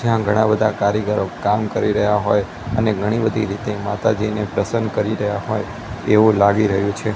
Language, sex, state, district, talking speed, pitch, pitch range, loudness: Gujarati, male, Gujarat, Gandhinagar, 175 wpm, 105 Hz, 105-110 Hz, -19 LUFS